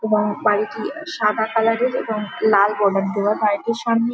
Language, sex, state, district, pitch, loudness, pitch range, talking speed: Bengali, female, West Bengal, Jhargram, 215 Hz, -19 LUFS, 210-230 Hz, 145 wpm